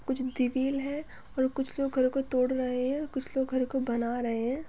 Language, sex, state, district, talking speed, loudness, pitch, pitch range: Hindi, female, Chhattisgarh, Bastar, 230 wpm, -30 LUFS, 260 Hz, 255-270 Hz